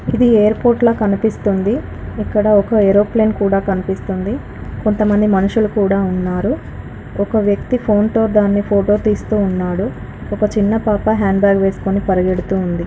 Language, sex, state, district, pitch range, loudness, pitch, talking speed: Telugu, female, Telangana, Karimnagar, 195-215 Hz, -15 LUFS, 205 Hz, 135 wpm